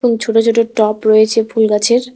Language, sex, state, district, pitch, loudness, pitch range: Bengali, female, West Bengal, Cooch Behar, 225 Hz, -13 LUFS, 215-235 Hz